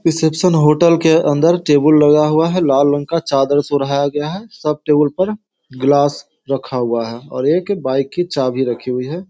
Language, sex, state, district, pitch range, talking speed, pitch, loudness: Hindi, male, Bihar, Sitamarhi, 135-165 Hz, 200 wpm, 150 Hz, -15 LUFS